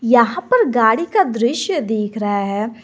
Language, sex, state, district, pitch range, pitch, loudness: Hindi, female, Jharkhand, Garhwa, 215-315 Hz, 235 Hz, -17 LUFS